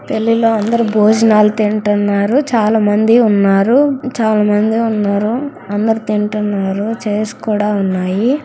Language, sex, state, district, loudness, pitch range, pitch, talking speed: Telugu, female, Andhra Pradesh, Krishna, -14 LUFS, 205-230 Hz, 215 Hz, 100 wpm